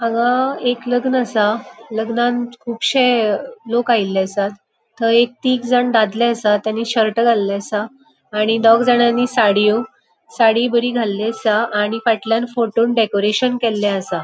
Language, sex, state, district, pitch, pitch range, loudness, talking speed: Konkani, female, Goa, North and South Goa, 230 Hz, 215-245 Hz, -17 LUFS, 145 wpm